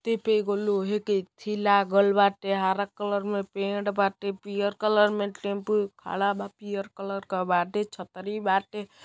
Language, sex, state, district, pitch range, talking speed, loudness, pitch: Bhojpuri, male, Uttar Pradesh, Deoria, 195-210 Hz, 165 wpm, -27 LUFS, 200 Hz